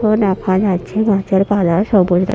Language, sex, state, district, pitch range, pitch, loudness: Bengali, female, West Bengal, Purulia, 185-205 Hz, 195 Hz, -15 LUFS